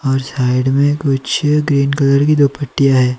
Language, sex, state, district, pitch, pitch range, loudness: Hindi, male, Himachal Pradesh, Shimla, 140 Hz, 135-145 Hz, -14 LUFS